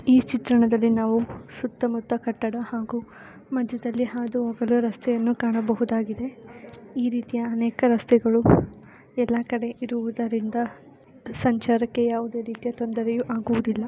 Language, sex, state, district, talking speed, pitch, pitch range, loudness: Kannada, female, Karnataka, Shimoga, 105 wpm, 235 Hz, 230-240 Hz, -24 LUFS